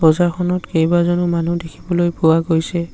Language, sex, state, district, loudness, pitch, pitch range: Assamese, male, Assam, Sonitpur, -17 LUFS, 170 Hz, 165-175 Hz